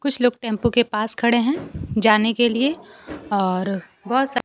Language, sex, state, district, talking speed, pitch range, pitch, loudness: Hindi, female, Bihar, Kaimur, 175 wpm, 215-245 Hz, 235 Hz, -20 LUFS